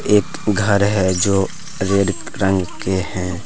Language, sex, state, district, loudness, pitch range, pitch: Hindi, male, Jharkhand, Deoghar, -18 LUFS, 95-105 Hz, 100 Hz